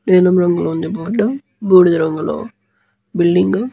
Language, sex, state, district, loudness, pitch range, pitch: Telugu, male, Andhra Pradesh, Guntur, -15 LUFS, 175-210 Hz, 180 Hz